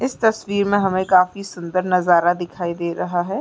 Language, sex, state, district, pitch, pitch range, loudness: Hindi, female, Uttarakhand, Uttarkashi, 185 Hz, 175-200 Hz, -19 LUFS